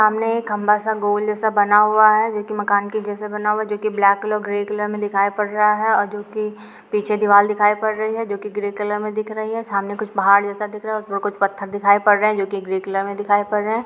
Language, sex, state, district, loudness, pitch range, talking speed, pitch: Hindi, female, Rajasthan, Nagaur, -19 LUFS, 205-215 Hz, 300 wpm, 210 Hz